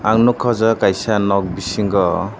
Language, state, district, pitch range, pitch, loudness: Kokborok, Tripura, Dhalai, 100-115 Hz, 105 Hz, -17 LUFS